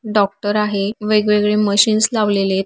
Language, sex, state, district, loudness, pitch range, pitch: Marathi, female, Maharashtra, Aurangabad, -16 LUFS, 200-215 Hz, 210 Hz